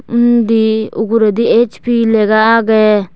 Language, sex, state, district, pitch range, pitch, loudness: Chakma, female, Tripura, West Tripura, 215-230 Hz, 225 Hz, -11 LUFS